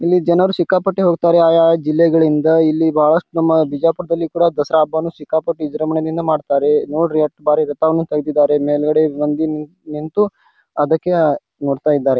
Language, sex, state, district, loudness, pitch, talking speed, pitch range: Kannada, male, Karnataka, Bijapur, -16 LUFS, 160 Hz, 140 wpm, 150-165 Hz